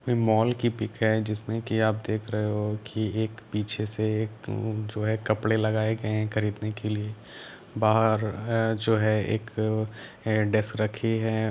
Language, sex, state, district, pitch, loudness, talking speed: Hindi, male, Jharkhand, Sahebganj, 110 Hz, -27 LUFS, 165 wpm